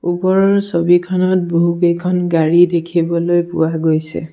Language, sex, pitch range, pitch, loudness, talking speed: Assamese, male, 170-180 Hz, 175 Hz, -15 LUFS, 95 wpm